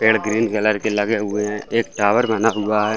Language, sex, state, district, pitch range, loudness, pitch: Hindi, male, Chhattisgarh, Bastar, 105-110 Hz, -19 LUFS, 110 Hz